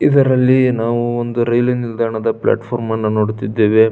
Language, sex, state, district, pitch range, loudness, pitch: Kannada, male, Karnataka, Belgaum, 110-120 Hz, -16 LUFS, 120 Hz